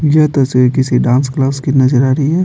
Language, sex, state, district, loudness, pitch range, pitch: Hindi, male, Bihar, Patna, -12 LUFS, 130-145 Hz, 135 Hz